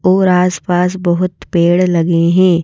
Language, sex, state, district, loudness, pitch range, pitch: Hindi, female, Madhya Pradesh, Bhopal, -13 LUFS, 170-185 Hz, 180 Hz